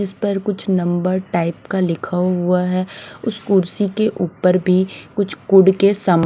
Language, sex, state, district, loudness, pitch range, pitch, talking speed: Hindi, female, Bihar, West Champaran, -18 LUFS, 180-200 Hz, 185 Hz, 175 wpm